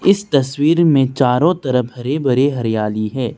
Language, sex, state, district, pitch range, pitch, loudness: Hindi, male, Arunachal Pradesh, Lower Dibang Valley, 125-150 Hz, 135 Hz, -16 LUFS